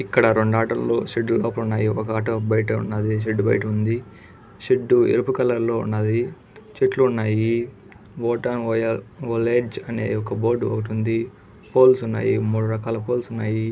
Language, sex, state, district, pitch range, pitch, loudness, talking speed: Telugu, male, Karnataka, Raichur, 110-120 Hz, 115 Hz, -22 LUFS, 145 wpm